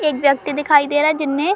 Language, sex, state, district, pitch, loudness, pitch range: Hindi, female, Uttar Pradesh, Muzaffarnagar, 295 Hz, -16 LUFS, 285-305 Hz